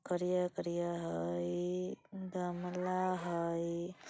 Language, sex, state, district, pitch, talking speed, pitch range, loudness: Bajjika, female, Bihar, Vaishali, 175 Hz, 100 wpm, 165-180 Hz, -38 LUFS